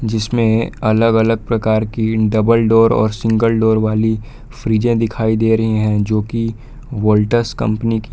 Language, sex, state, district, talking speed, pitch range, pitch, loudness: Hindi, male, Jharkhand, Palamu, 155 wpm, 110-115 Hz, 110 Hz, -15 LUFS